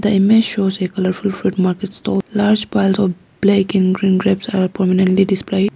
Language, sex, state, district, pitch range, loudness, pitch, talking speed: English, female, Arunachal Pradesh, Lower Dibang Valley, 185-200 Hz, -16 LUFS, 195 Hz, 190 wpm